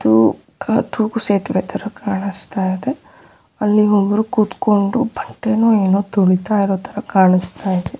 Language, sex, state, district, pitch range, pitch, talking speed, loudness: Kannada, female, Karnataka, Bellary, 190-215 Hz, 200 Hz, 115 wpm, -17 LUFS